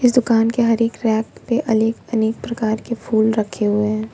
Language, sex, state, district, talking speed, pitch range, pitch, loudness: Hindi, female, Jharkhand, Ranchi, 215 wpm, 220-235 Hz, 225 Hz, -19 LUFS